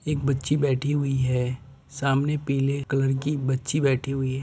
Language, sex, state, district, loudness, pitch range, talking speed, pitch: Hindi, male, Uttar Pradesh, Deoria, -25 LUFS, 130-140 Hz, 205 wpm, 135 Hz